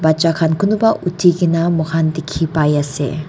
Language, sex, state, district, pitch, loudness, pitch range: Nagamese, female, Nagaland, Dimapur, 165 Hz, -16 LUFS, 155-170 Hz